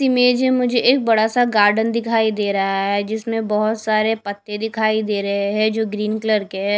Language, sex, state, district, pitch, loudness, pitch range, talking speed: Hindi, female, Punjab, Kapurthala, 215 Hz, -18 LUFS, 205-225 Hz, 210 wpm